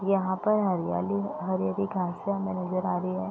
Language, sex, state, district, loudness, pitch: Hindi, female, Bihar, East Champaran, -28 LUFS, 180 Hz